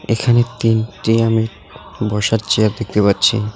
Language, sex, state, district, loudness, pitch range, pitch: Bengali, male, West Bengal, Alipurduar, -16 LUFS, 105-115 Hz, 110 Hz